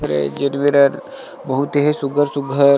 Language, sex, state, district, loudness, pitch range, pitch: Chhattisgarhi, male, Chhattisgarh, Sarguja, -17 LUFS, 135-145 Hz, 140 Hz